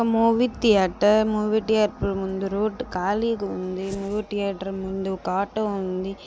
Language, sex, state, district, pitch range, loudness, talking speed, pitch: Telugu, female, Andhra Pradesh, Visakhapatnam, 190-215 Hz, -24 LUFS, 135 wpm, 200 Hz